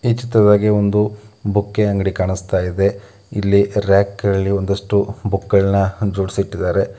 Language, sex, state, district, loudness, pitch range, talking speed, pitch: Kannada, male, Karnataka, Mysore, -17 LUFS, 100-105 Hz, 110 wpm, 100 Hz